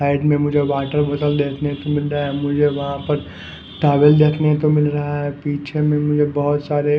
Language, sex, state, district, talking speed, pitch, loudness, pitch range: Hindi, male, Punjab, Fazilka, 190 wpm, 145 Hz, -18 LUFS, 145-150 Hz